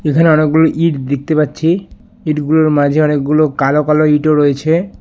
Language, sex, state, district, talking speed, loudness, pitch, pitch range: Bengali, male, West Bengal, Alipurduar, 145 wpm, -13 LUFS, 155 Hz, 150-160 Hz